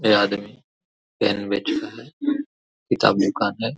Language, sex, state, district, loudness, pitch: Hindi, male, Bihar, Araria, -22 LUFS, 110 Hz